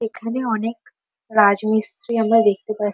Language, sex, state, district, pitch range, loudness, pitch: Bengali, female, West Bengal, Dakshin Dinajpur, 215-230 Hz, -19 LUFS, 225 Hz